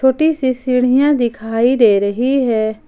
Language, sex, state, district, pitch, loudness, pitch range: Hindi, female, Jharkhand, Ranchi, 250 Hz, -15 LUFS, 225-265 Hz